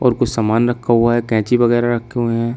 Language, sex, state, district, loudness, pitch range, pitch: Hindi, male, Uttar Pradesh, Shamli, -16 LUFS, 115-120 Hz, 120 Hz